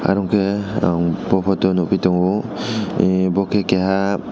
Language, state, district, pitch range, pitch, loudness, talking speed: Kokborok, Tripura, West Tripura, 95-100 Hz, 95 Hz, -18 LUFS, 155 wpm